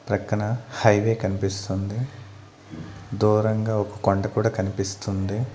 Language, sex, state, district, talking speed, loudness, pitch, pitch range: Telugu, male, Andhra Pradesh, Annamaya, 85 wpm, -24 LUFS, 105 Hz, 100-110 Hz